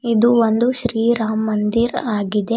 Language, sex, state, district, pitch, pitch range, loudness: Kannada, female, Karnataka, Bidar, 230 Hz, 220-235 Hz, -17 LUFS